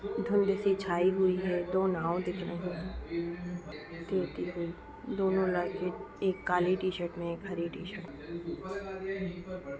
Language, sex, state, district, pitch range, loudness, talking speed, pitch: Hindi, female, Bihar, Bhagalpur, 170-190 Hz, -33 LUFS, 120 wpm, 180 Hz